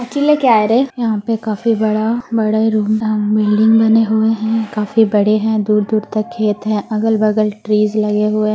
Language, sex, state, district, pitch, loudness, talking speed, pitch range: Hindi, female, Bihar, Gaya, 215 Hz, -15 LUFS, 190 wpm, 215-225 Hz